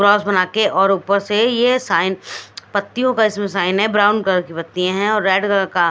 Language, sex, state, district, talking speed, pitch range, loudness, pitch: Hindi, female, Chandigarh, Chandigarh, 235 wpm, 185-210 Hz, -17 LUFS, 200 Hz